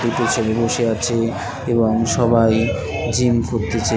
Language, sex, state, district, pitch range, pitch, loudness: Bengali, male, West Bengal, Cooch Behar, 110-120 Hz, 115 Hz, -18 LUFS